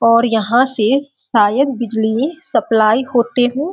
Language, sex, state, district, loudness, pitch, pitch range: Hindi, female, Bihar, Sitamarhi, -15 LUFS, 245 Hz, 225-275 Hz